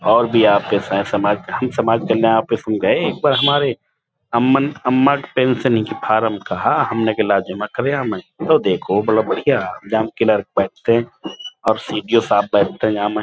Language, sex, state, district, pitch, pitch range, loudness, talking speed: Hindi, male, Uttar Pradesh, Budaun, 115 Hz, 110-130 Hz, -17 LUFS, 155 wpm